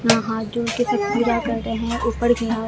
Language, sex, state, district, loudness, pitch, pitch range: Hindi, female, Bihar, Katihar, -21 LUFS, 230 Hz, 225-235 Hz